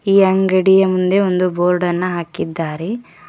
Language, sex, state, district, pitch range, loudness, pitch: Kannada, female, Karnataka, Koppal, 175-190 Hz, -16 LUFS, 185 Hz